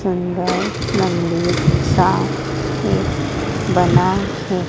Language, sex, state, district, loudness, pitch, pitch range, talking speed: Hindi, female, Madhya Pradesh, Dhar, -18 LUFS, 180 Hz, 170-185 Hz, 75 wpm